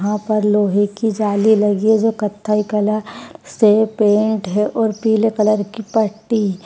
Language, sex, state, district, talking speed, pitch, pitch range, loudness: Hindi, female, Uttar Pradesh, Etah, 170 wpm, 215 Hz, 210-220 Hz, -16 LUFS